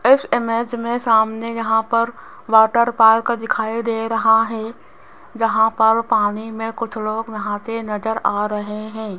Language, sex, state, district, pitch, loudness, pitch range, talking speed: Hindi, female, Rajasthan, Jaipur, 225 Hz, -18 LUFS, 220-230 Hz, 150 wpm